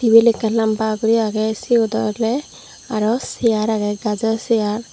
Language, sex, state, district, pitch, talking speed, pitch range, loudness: Chakma, female, Tripura, Dhalai, 220 Hz, 145 wpm, 215-230 Hz, -18 LUFS